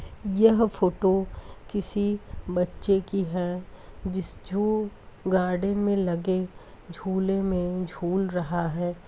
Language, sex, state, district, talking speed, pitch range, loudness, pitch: Hindi, female, Uttar Pradesh, Deoria, 105 wpm, 180-200 Hz, -27 LUFS, 190 Hz